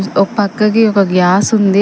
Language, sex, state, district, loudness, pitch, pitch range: Telugu, female, Telangana, Mahabubabad, -12 LUFS, 205 Hz, 195-215 Hz